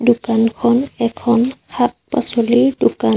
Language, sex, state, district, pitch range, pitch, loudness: Assamese, female, Assam, Sonitpur, 230-245 Hz, 235 Hz, -16 LUFS